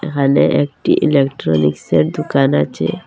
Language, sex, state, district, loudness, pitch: Bengali, female, Assam, Hailakandi, -15 LUFS, 135 Hz